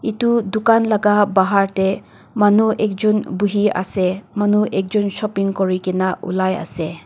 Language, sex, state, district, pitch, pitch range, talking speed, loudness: Nagamese, female, Nagaland, Dimapur, 200 Hz, 190-215 Hz, 145 wpm, -18 LUFS